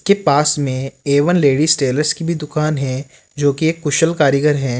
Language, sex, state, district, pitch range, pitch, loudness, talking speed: Hindi, male, Rajasthan, Jaipur, 140-155 Hz, 145 Hz, -16 LUFS, 210 wpm